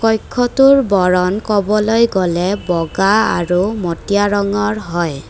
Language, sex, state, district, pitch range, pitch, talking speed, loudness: Assamese, female, Assam, Kamrup Metropolitan, 180-215 Hz, 200 Hz, 100 wpm, -15 LUFS